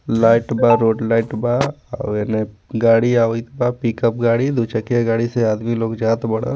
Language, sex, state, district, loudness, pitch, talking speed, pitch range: Bhojpuri, male, Jharkhand, Palamu, -18 LUFS, 115 Hz, 185 wpm, 115-120 Hz